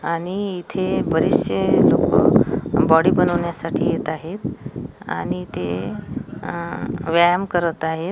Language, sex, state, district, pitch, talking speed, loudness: Marathi, female, Maharashtra, Washim, 170 Hz, 95 wpm, -20 LUFS